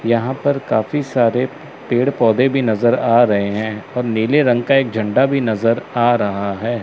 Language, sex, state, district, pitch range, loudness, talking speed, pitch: Hindi, male, Chandigarh, Chandigarh, 110-130 Hz, -17 LUFS, 195 wpm, 120 Hz